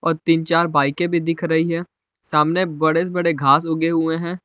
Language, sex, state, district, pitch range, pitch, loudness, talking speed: Hindi, male, Jharkhand, Palamu, 160-170 Hz, 165 Hz, -19 LUFS, 190 wpm